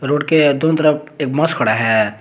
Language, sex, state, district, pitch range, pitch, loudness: Hindi, male, Jharkhand, Garhwa, 120-155 Hz, 145 Hz, -15 LUFS